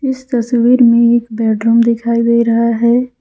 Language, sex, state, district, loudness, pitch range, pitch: Hindi, female, Jharkhand, Ranchi, -12 LUFS, 230-245 Hz, 235 Hz